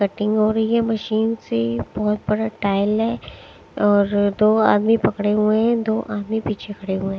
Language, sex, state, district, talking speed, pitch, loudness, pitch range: Hindi, female, Odisha, Sambalpur, 175 wpm, 210 Hz, -20 LUFS, 205-220 Hz